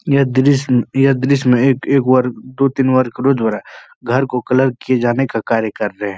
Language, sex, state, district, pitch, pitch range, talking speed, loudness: Hindi, male, Uttar Pradesh, Etah, 130 Hz, 120-135 Hz, 225 wpm, -15 LUFS